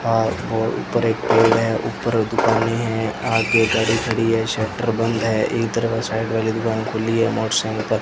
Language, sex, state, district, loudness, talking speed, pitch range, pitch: Hindi, male, Rajasthan, Bikaner, -20 LUFS, 185 wpm, 110-115 Hz, 115 Hz